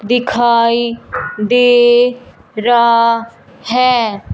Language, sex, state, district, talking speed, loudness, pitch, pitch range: Hindi, female, Punjab, Fazilka, 55 wpm, -12 LUFS, 235 Hz, 230-245 Hz